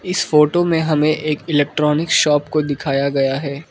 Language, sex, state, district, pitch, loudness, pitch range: Hindi, male, Arunachal Pradesh, Lower Dibang Valley, 150 Hz, -17 LUFS, 145-160 Hz